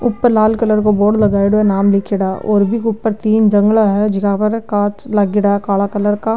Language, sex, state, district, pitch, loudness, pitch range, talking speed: Marwari, female, Rajasthan, Nagaur, 210 Hz, -14 LUFS, 200-220 Hz, 215 wpm